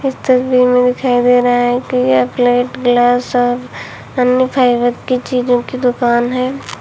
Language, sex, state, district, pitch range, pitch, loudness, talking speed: Hindi, female, Uttar Pradesh, Shamli, 245-255 Hz, 245 Hz, -13 LUFS, 165 wpm